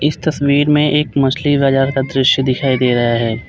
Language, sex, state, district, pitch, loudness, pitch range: Hindi, male, Uttar Pradesh, Lalitpur, 135 Hz, -14 LUFS, 130-145 Hz